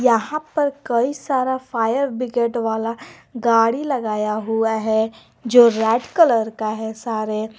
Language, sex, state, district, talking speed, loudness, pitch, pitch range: Hindi, female, Jharkhand, Garhwa, 135 wpm, -19 LUFS, 230 Hz, 220-260 Hz